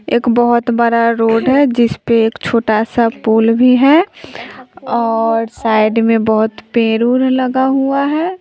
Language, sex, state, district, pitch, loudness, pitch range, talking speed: Hindi, female, Bihar, West Champaran, 235 Hz, -13 LUFS, 225-260 Hz, 155 wpm